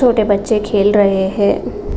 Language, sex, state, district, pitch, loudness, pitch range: Hindi, female, Uttar Pradesh, Jalaun, 205 Hz, -14 LUFS, 200-215 Hz